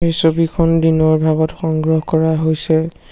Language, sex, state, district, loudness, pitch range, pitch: Assamese, male, Assam, Sonitpur, -15 LUFS, 160-165 Hz, 160 Hz